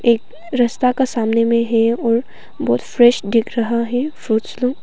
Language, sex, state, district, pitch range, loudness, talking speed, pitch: Hindi, female, Arunachal Pradesh, Papum Pare, 230-250 Hz, -17 LUFS, 175 wpm, 235 Hz